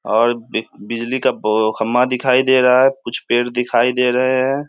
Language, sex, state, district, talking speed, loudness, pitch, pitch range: Hindi, male, Bihar, Samastipur, 215 wpm, -16 LUFS, 125 Hz, 115-130 Hz